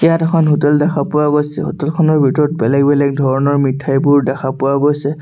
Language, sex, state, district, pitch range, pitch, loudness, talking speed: Assamese, male, Assam, Sonitpur, 140-150 Hz, 145 Hz, -14 LUFS, 185 wpm